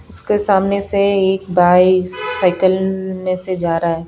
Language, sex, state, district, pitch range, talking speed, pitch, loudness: Hindi, female, Bihar, Patna, 180-190 Hz, 160 wpm, 185 Hz, -15 LUFS